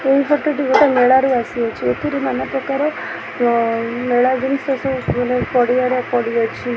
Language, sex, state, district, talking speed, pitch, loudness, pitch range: Odia, female, Odisha, Khordha, 140 wpm, 255 Hz, -17 LUFS, 240-275 Hz